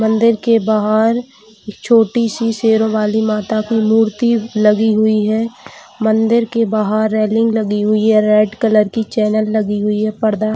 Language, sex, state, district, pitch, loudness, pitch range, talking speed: Hindi, female, Chhattisgarh, Bilaspur, 220 Hz, -14 LUFS, 215-225 Hz, 160 wpm